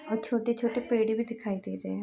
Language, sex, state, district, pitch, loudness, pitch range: Hindi, female, Uttar Pradesh, Varanasi, 225 Hz, -30 LUFS, 200-235 Hz